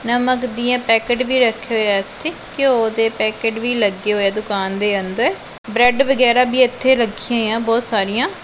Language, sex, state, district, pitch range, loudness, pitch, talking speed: Punjabi, female, Punjab, Pathankot, 215-250 Hz, -17 LUFS, 230 Hz, 180 wpm